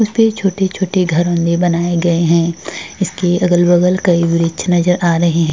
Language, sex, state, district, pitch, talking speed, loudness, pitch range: Hindi, female, Maharashtra, Chandrapur, 175 Hz, 185 wpm, -14 LUFS, 170-185 Hz